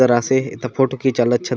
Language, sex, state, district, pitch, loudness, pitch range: Halbi, male, Chhattisgarh, Bastar, 130 Hz, -18 LUFS, 120-130 Hz